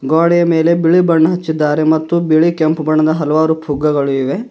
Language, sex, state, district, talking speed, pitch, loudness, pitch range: Kannada, male, Karnataka, Bidar, 145 wpm, 160 Hz, -13 LUFS, 155-170 Hz